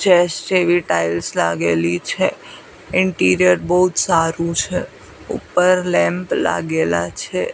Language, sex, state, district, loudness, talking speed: Gujarati, female, Gujarat, Gandhinagar, -17 LUFS, 105 wpm